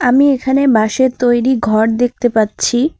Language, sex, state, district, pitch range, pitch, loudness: Bengali, female, West Bengal, Alipurduar, 225-260 Hz, 245 Hz, -13 LUFS